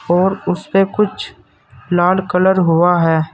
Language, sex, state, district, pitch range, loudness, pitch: Hindi, male, Uttar Pradesh, Saharanpur, 175-190 Hz, -15 LUFS, 180 Hz